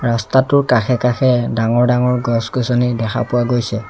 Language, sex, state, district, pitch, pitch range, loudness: Assamese, male, Assam, Sonitpur, 120 Hz, 115-125 Hz, -16 LUFS